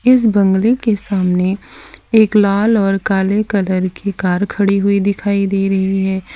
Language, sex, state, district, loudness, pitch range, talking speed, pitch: Hindi, female, Gujarat, Valsad, -15 LUFS, 190-210 Hz, 160 wpm, 200 Hz